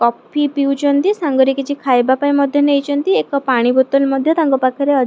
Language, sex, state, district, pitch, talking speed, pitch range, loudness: Odia, female, Odisha, Khordha, 280 Hz, 190 wpm, 265-285 Hz, -15 LUFS